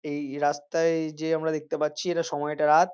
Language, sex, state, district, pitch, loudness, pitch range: Bengali, male, West Bengal, North 24 Parganas, 155 Hz, -27 LUFS, 145-165 Hz